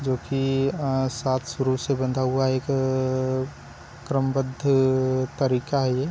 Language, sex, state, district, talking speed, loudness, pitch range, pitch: Hindi, male, Chhattisgarh, Bilaspur, 125 wpm, -24 LUFS, 130-135 Hz, 130 Hz